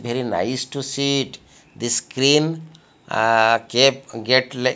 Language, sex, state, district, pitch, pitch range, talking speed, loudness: English, male, Odisha, Malkangiri, 130 Hz, 120-140 Hz, 140 wpm, -19 LUFS